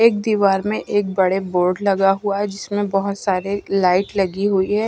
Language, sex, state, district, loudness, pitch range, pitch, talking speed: Hindi, female, Odisha, Nuapada, -19 LUFS, 190-205 Hz, 195 Hz, 195 wpm